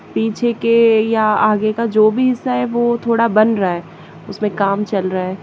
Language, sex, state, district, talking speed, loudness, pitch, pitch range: Hindi, female, Haryana, Jhajjar, 190 wpm, -16 LUFS, 215 Hz, 200-230 Hz